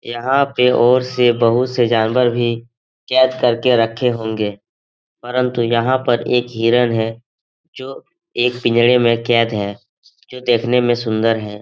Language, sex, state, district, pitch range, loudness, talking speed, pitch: Hindi, male, Bihar, Jahanabad, 115-125 Hz, -16 LUFS, 150 wpm, 120 Hz